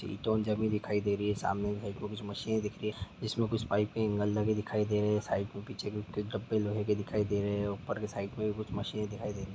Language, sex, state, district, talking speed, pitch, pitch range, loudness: Hindi, male, Jharkhand, Sahebganj, 275 wpm, 105 Hz, 100-105 Hz, -34 LUFS